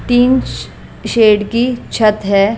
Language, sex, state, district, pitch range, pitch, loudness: Hindi, female, Punjab, Kapurthala, 210-245 Hz, 220 Hz, -13 LUFS